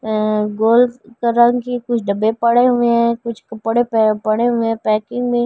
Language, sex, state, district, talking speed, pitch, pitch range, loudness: Hindi, female, Delhi, New Delhi, 165 wpm, 235 Hz, 220-240 Hz, -16 LUFS